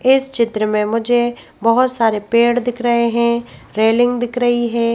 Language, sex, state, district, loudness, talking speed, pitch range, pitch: Hindi, female, Madhya Pradesh, Bhopal, -16 LUFS, 170 wpm, 230-245 Hz, 235 Hz